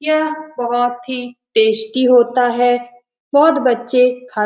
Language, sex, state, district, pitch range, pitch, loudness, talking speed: Hindi, female, Bihar, Lakhisarai, 245-255 Hz, 245 Hz, -15 LUFS, 135 wpm